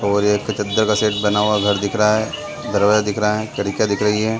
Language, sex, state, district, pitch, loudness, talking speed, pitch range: Hindi, male, Chhattisgarh, Sarguja, 105 Hz, -18 LUFS, 270 wpm, 105-110 Hz